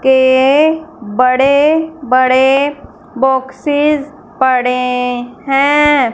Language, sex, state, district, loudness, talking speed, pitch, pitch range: Hindi, female, Punjab, Fazilka, -12 LUFS, 60 wpm, 265 Hz, 255-290 Hz